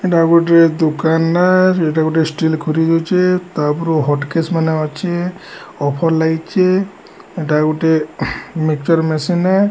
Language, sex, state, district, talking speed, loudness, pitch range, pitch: Odia, male, Odisha, Sambalpur, 130 wpm, -15 LUFS, 155-175 Hz, 165 Hz